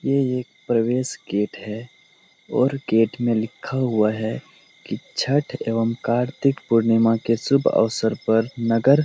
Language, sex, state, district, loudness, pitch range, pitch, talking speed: Hindi, male, Bihar, Lakhisarai, -22 LUFS, 115-130 Hz, 115 Hz, 145 wpm